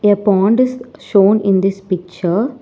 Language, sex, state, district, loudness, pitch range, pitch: English, female, Telangana, Hyderabad, -15 LUFS, 190-220 Hz, 200 Hz